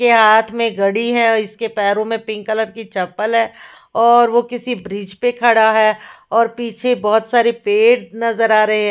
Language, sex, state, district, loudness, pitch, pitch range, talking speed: Hindi, female, Punjab, Fazilka, -15 LUFS, 225 Hz, 215-235 Hz, 195 wpm